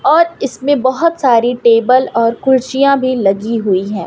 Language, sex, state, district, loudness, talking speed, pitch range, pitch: Hindi, female, Madhya Pradesh, Umaria, -13 LUFS, 160 wpm, 230-275 Hz, 255 Hz